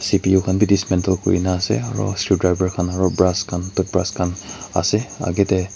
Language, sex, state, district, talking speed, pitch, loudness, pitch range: Nagamese, male, Nagaland, Kohima, 165 wpm, 95 Hz, -19 LUFS, 90-100 Hz